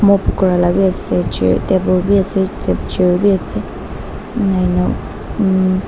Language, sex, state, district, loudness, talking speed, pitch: Nagamese, female, Nagaland, Dimapur, -16 LUFS, 80 wpm, 185 Hz